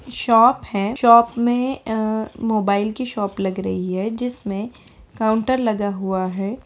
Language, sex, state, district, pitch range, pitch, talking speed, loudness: Hindi, female, Bihar, Begusarai, 200-240 Hz, 220 Hz, 145 wpm, -20 LUFS